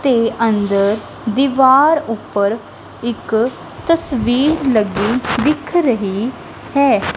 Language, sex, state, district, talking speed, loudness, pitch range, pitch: Punjabi, female, Punjab, Kapurthala, 85 wpm, -16 LUFS, 220-275 Hz, 240 Hz